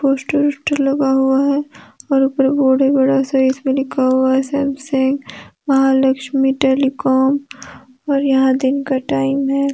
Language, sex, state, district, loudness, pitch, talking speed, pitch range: Hindi, female, Jharkhand, Deoghar, -16 LUFS, 270 Hz, 150 wpm, 265-275 Hz